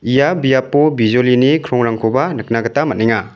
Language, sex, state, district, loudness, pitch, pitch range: Garo, male, Meghalaya, South Garo Hills, -14 LUFS, 125 Hz, 115-145 Hz